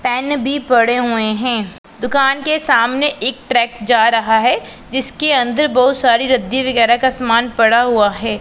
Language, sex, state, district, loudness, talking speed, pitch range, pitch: Hindi, female, Punjab, Pathankot, -14 LUFS, 170 wpm, 230-265 Hz, 245 Hz